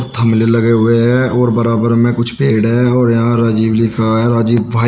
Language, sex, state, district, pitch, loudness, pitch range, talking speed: Hindi, male, Uttar Pradesh, Shamli, 115 Hz, -12 LUFS, 115-120 Hz, 210 wpm